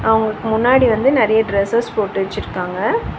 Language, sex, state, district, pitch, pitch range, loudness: Tamil, female, Tamil Nadu, Chennai, 220 Hz, 200-235 Hz, -16 LUFS